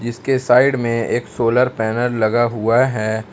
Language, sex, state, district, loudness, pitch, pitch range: Hindi, male, Jharkhand, Palamu, -17 LUFS, 120 Hz, 110-125 Hz